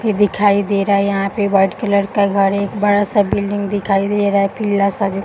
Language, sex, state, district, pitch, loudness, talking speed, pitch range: Hindi, female, Uttar Pradesh, Gorakhpur, 200 Hz, -16 LUFS, 240 wpm, 200-205 Hz